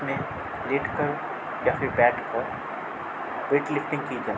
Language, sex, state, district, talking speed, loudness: Hindi, male, Uttar Pradesh, Budaun, 135 wpm, -27 LUFS